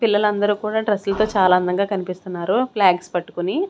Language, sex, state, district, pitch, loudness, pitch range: Telugu, female, Andhra Pradesh, Sri Satya Sai, 200 Hz, -20 LUFS, 180-210 Hz